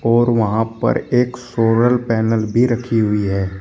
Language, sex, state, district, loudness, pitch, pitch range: Hindi, male, Uttar Pradesh, Shamli, -17 LUFS, 115 Hz, 110-120 Hz